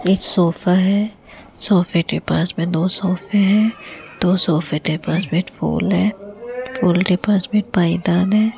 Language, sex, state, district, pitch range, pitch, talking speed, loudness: Hindi, female, Rajasthan, Jaipur, 175-210 Hz, 185 Hz, 170 wpm, -17 LUFS